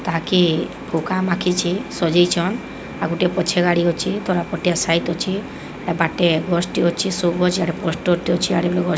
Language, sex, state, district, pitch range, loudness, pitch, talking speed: Odia, female, Odisha, Sambalpur, 170-185 Hz, -19 LUFS, 175 Hz, 140 wpm